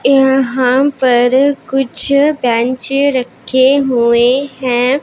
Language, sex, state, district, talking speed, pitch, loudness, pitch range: Hindi, female, Punjab, Pathankot, 85 wpm, 265 Hz, -12 LUFS, 250-275 Hz